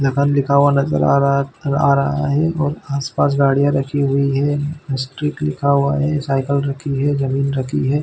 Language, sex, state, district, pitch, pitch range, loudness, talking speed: Hindi, male, Chhattisgarh, Bilaspur, 140 Hz, 140-145 Hz, -17 LUFS, 200 wpm